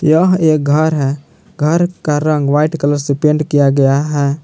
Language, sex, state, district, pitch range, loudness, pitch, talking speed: Hindi, male, Jharkhand, Palamu, 145-160 Hz, -13 LUFS, 150 Hz, 190 wpm